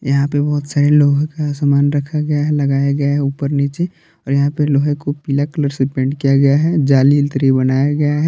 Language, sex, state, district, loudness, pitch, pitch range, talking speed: Hindi, male, Jharkhand, Palamu, -15 LUFS, 145 Hz, 140-150 Hz, 215 wpm